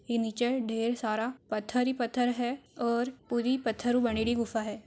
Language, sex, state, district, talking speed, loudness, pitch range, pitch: Marwari, female, Rajasthan, Churu, 170 wpm, -31 LUFS, 225-245 Hz, 235 Hz